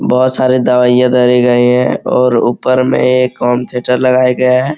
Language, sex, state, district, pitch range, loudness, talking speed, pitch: Hindi, male, Uttar Pradesh, Muzaffarnagar, 125-130 Hz, -11 LUFS, 175 wpm, 125 Hz